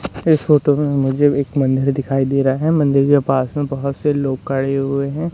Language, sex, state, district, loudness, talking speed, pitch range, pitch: Hindi, male, Madhya Pradesh, Katni, -17 LUFS, 225 wpm, 135-145 Hz, 140 Hz